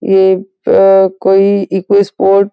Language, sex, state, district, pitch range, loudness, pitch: Hindi, female, Uttar Pradesh, Gorakhpur, 190-200 Hz, -10 LUFS, 195 Hz